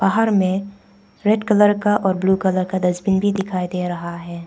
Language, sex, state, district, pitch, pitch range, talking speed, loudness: Hindi, female, Arunachal Pradesh, Papum Pare, 190 Hz, 180-205 Hz, 200 wpm, -19 LUFS